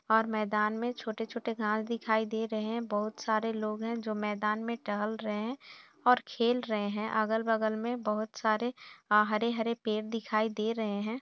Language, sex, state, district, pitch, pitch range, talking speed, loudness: Hindi, female, Bihar, Saharsa, 220 Hz, 215-230 Hz, 180 wpm, -32 LUFS